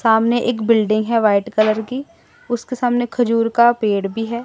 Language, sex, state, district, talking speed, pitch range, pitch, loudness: Hindi, female, Assam, Sonitpur, 190 wpm, 220-240 Hz, 230 Hz, -17 LUFS